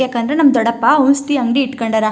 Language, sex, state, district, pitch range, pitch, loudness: Kannada, female, Karnataka, Chamarajanagar, 235-280 Hz, 260 Hz, -14 LUFS